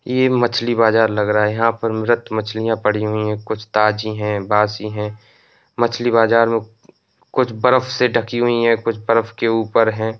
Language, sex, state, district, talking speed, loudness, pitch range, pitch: Hindi, male, Uttar Pradesh, Etah, 190 wpm, -18 LUFS, 105-115 Hz, 115 Hz